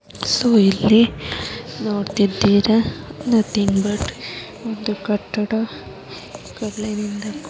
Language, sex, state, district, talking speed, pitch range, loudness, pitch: Kannada, female, Karnataka, Bijapur, 55 wpm, 205-220 Hz, -19 LUFS, 210 Hz